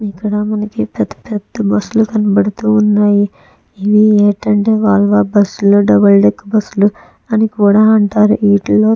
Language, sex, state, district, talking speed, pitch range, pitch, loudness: Telugu, female, Andhra Pradesh, Chittoor, 140 wpm, 200-215 Hz, 210 Hz, -12 LUFS